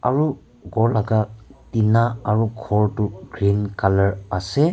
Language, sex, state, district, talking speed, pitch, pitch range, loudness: Nagamese, male, Nagaland, Kohima, 125 wpm, 110 Hz, 100-115 Hz, -21 LUFS